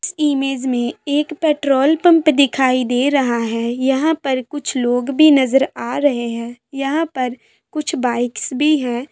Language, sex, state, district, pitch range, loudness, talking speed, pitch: Hindi, female, Bihar, Sitamarhi, 245-300 Hz, -17 LUFS, 165 wpm, 270 Hz